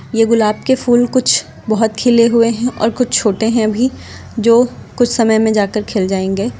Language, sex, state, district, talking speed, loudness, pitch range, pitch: Hindi, female, Uttar Pradesh, Lucknow, 190 wpm, -14 LUFS, 215-245 Hz, 230 Hz